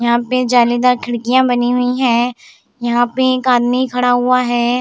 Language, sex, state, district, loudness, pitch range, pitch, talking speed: Hindi, female, Bihar, Samastipur, -14 LUFS, 240-250 Hz, 245 Hz, 175 wpm